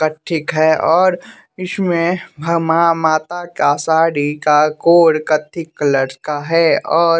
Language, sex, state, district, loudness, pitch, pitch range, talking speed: Hindi, male, Bihar, West Champaran, -15 LUFS, 165 Hz, 155-170 Hz, 125 wpm